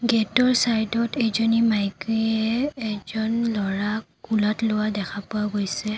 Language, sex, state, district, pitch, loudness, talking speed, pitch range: Assamese, female, Assam, Kamrup Metropolitan, 220 Hz, -23 LUFS, 110 wpm, 210-230 Hz